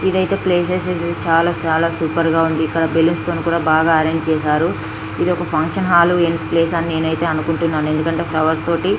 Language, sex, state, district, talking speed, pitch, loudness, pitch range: Telugu, female, Andhra Pradesh, Srikakulam, 165 wpm, 165 Hz, -17 LUFS, 160-170 Hz